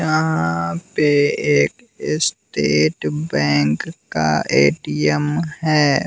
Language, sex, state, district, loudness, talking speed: Hindi, male, Bihar, West Champaran, -18 LUFS, 80 wpm